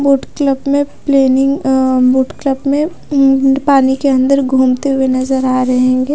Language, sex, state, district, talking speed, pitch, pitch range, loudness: Hindi, female, Odisha, Nuapada, 165 wpm, 270 Hz, 260-275 Hz, -13 LUFS